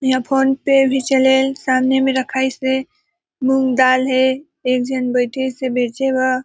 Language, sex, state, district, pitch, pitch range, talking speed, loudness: Hindi, female, Chhattisgarh, Balrampur, 265 Hz, 255-270 Hz, 160 wpm, -17 LUFS